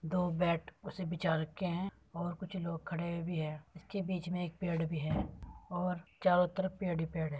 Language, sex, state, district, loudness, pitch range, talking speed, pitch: Hindi, male, Uttar Pradesh, Muzaffarnagar, -36 LUFS, 165-180 Hz, 220 wpm, 175 Hz